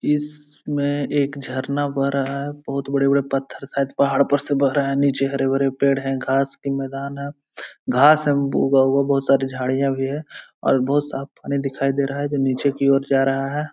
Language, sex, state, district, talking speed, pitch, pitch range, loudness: Hindi, male, Uttar Pradesh, Hamirpur, 225 wpm, 140 Hz, 135-140 Hz, -21 LUFS